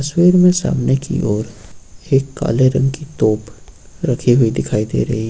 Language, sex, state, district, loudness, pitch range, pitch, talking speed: Hindi, male, Uttar Pradesh, Lucknow, -16 LUFS, 110-140 Hz, 125 Hz, 170 wpm